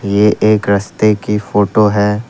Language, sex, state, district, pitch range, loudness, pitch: Hindi, male, Assam, Kamrup Metropolitan, 100-105 Hz, -13 LUFS, 105 Hz